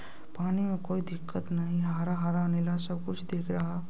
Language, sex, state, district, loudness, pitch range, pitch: Hindi, male, Bihar, Kishanganj, -32 LUFS, 170-180 Hz, 175 Hz